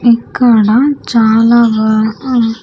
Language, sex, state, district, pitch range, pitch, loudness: Telugu, female, Andhra Pradesh, Sri Satya Sai, 220-240 Hz, 230 Hz, -10 LUFS